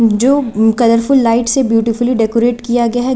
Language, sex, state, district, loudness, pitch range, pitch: Hindi, female, Uttar Pradesh, Lucknow, -12 LUFS, 230-245 Hz, 235 Hz